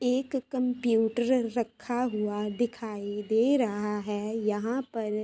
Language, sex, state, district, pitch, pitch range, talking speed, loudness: Hindi, female, Uttar Pradesh, Ghazipur, 225 Hz, 210-250 Hz, 115 wpm, -29 LUFS